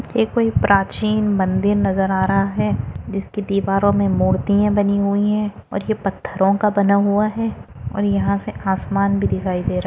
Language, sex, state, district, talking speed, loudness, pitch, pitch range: Hindi, female, Maharashtra, Dhule, 190 wpm, -18 LUFS, 200 Hz, 190-205 Hz